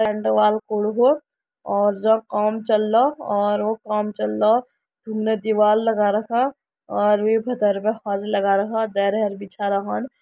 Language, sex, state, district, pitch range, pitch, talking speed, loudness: Hindi, female, Uttarakhand, Uttarkashi, 205-225 Hz, 215 Hz, 160 wpm, -21 LUFS